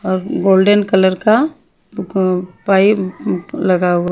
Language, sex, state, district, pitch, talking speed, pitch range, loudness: Hindi, female, Punjab, Pathankot, 190 Hz, 130 wpm, 185-205 Hz, -15 LUFS